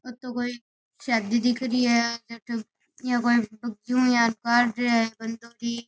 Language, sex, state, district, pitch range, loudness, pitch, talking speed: Rajasthani, female, Rajasthan, Nagaur, 235-245 Hz, -25 LUFS, 235 Hz, 165 wpm